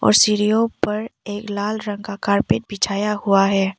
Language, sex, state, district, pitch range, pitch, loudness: Hindi, female, Arunachal Pradesh, Papum Pare, 200-210 Hz, 205 Hz, -20 LUFS